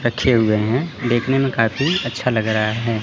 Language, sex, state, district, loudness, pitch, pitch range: Hindi, male, Chandigarh, Chandigarh, -19 LUFS, 120 Hz, 110-135 Hz